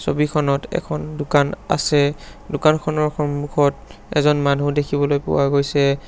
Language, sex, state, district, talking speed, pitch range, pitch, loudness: Assamese, male, Assam, Sonitpur, 110 wpm, 140-150 Hz, 145 Hz, -19 LUFS